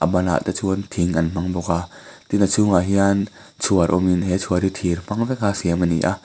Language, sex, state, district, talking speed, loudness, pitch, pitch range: Mizo, male, Mizoram, Aizawl, 230 wpm, -20 LUFS, 90 Hz, 90-100 Hz